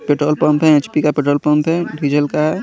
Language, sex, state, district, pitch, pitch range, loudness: Hindi, male, Chandigarh, Chandigarh, 150 Hz, 145-155 Hz, -15 LUFS